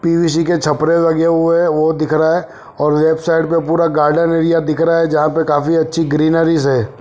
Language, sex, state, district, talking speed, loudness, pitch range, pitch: Hindi, male, Punjab, Fazilka, 215 wpm, -14 LUFS, 155-165 Hz, 160 Hz